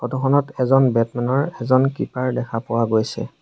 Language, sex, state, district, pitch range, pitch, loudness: Assamese, male, Assam, Sonitpur, 115-135 Hz, 125 Hz, -20 LUFS